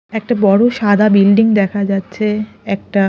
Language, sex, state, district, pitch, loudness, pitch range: Bengali, female, Odisha, Khordha, 205 Hz, -14 LUFS, 200-215 Hz